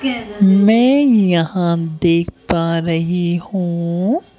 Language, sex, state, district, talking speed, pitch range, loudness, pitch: Hindi, female, Madhya Pradesh, Bhopal, 80 wpm, 170-210 Hz, -15 LUFS, 175 Hz